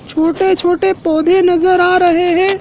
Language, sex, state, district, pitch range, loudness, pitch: Hindi, male, Madhya Pradesh, Dhar, 345-370 Hz, -12 LUFS, 355 Hz